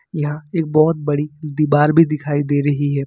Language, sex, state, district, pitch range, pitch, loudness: Hindi, male, Jharkhand, Ranchi, 145-155 Hz, 150 Hz, -17 LUFS